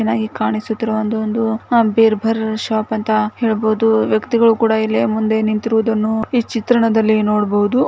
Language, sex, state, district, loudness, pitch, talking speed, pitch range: Kannada, female, Karnataka, Gulbarga, -16 LUFS, 220 Hz, 130 wpm, 215-225 Hz